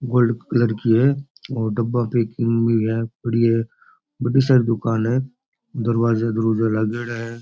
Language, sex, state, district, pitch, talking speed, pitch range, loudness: Rajasthani, male, Rajasthan, Churu, 115 Hz, 155 wpm, 115-125 Hz, -20 LUFS